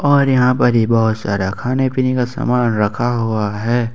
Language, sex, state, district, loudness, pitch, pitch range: Hindi, male, Jharkhand, Ranchi, -16 LUFS, 120 Hz, 110-130 Hz